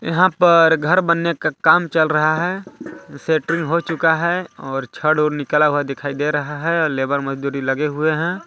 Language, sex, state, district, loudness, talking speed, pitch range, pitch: Hindi, male, Chhattisgarh, Balrampur, -18 LUFS, 200 wpm, 145-170 Hz, 155 Hz